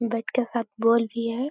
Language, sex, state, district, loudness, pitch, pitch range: Hindi, female, Bihar, Supaul, -25 LUFS, 235 Hz, 230-235 Hz